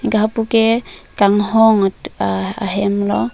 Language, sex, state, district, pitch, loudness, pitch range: Karbi, female, Assam, Karbi Anglong, 205 Hz, -16 LUFS, 190-225 Hz